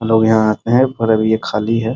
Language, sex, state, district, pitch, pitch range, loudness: Hindi, male, Bihar, Muzaffarpur, 110 Hz, 110-115 Hz, -15 LUFS